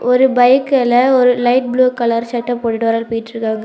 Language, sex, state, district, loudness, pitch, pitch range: Tamil, female, Tamil Nadu, Kanyakumari, -14 LUFS, 245 Hz, 230-250 Hz